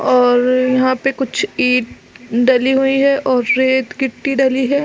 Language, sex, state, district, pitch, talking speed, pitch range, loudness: Hindi, female, Chhattisgarh, Balrampur, 260 Hz, 160 wpm, 255-270 Hz, -15 LUFS